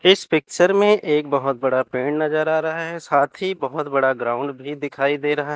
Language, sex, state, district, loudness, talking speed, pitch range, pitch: Hindi, male, Chandigarh, Chandigarh, -20 LUFS, 215 wpm, 140-160 Hz, 150 Hz